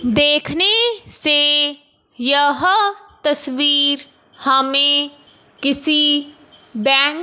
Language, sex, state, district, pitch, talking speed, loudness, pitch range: Hindi, male, Punjab, Fazilka, 290 Hz, 65 wpm, -14 LUFS, 280-305 Hz